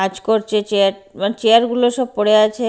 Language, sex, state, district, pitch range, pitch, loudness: Bengali, female, Bihar, Katihar, 200-230 Hz, 215 Hz, -16 LUFS